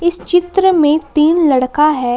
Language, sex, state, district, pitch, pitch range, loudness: Hindi, female, Jharkhand, Palamu, 305 Hz, 295-345 Hz, -12 LUFS